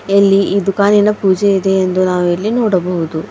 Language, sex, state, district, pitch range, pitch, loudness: Kannada, female, Karnataka, Bidar, 185-200 Hz, 195 Hz, -13 LUFS